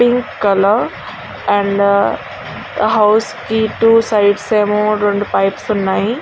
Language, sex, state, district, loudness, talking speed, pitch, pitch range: Telugu, female, Andhra Pradesh, Srikakulam, -14 LUFS, 105 wpm, 210 Hz, 200-220 Hz